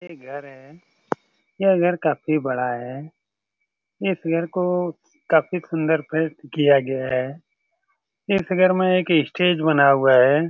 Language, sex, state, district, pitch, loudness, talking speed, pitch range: Hindi, male, Bihar, Saran, 160 Hz, -20 LUFS, 150 wpm, 140-180 Hz